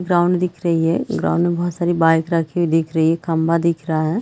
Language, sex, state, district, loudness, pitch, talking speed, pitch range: Hindi, female, Chhattisgarh, Balrampur, -18 LUFS, 170 Hz, 255 wpm, 165-175 Hz